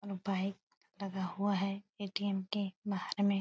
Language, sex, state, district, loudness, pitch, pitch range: Hindi, female, Uttar Pradesh, Etah, -37 LUFS, 200 Hz, 195-200 Hz